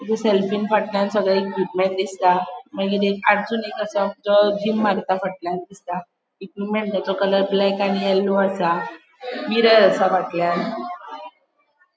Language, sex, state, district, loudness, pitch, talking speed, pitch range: Konkani, female, Goa, North and South Goa, -20 LUFS, 200 Hz, 105 wpm, 190-210 Hz